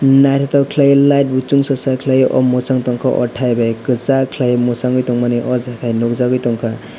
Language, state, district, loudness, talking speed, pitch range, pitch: Kokborok, Tripura, West Tripura, -15 LUFS, 180 wpm, 120-135 Hz, 125 Hz